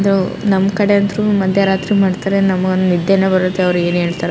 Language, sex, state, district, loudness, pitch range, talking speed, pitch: Kannada, female, Karnataka, Raichur, -15 LUFS, 185-200 Hz, 210 wpm, 190 Hz